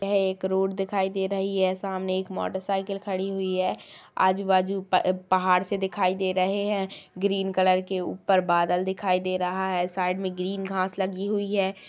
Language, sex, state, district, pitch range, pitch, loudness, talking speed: Kumaoni, female, Uttarakhand, Tehri Garhwal, 185-195 Hz, 190 Hz, -26 LUFS, 190 wpm